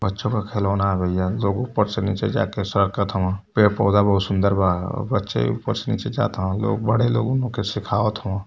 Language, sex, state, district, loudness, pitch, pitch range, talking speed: Hindi, male, Uttar Pradesh, Varanasi, -22 LUFS, 100 Hz, 100-110 Hz, 185 wpm